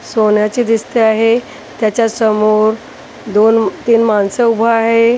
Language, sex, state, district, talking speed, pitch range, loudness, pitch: Marathi, female, Maharashtra, Gondia, 115 wpm, 215-230 Hz, -13 LUFS, 225 Hz